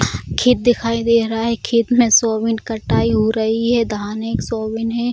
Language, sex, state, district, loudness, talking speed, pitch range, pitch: Hindi, female, Bihar, Jamui, -17 LUFS, 200 wpm, 225-235 Hz, 230 Hz